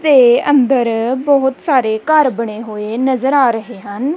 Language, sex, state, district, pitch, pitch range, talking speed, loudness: Punjabi, female, Punjab, Kapurthala, 260 Hz, 230-275 Hz, 160 wpm, -14 LUFS